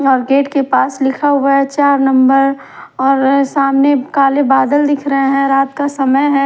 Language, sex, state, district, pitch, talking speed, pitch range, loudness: Hindi, female, Punjab, Kapurthala, 275 Hz, 185 wpm, 270-280 Hz, -12 LUFS